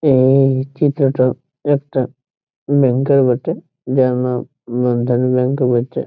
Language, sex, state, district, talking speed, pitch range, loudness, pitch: Bengali, male, West Bengal, Jhargram, 120 wpm, 125-140 Hz, -16 LUFS, 130 Hz